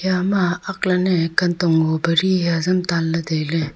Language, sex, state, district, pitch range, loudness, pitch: Wancho, female, Arunachal Pradesh, Longding, 165-185 Hz, -19 LUFS, 175 Hz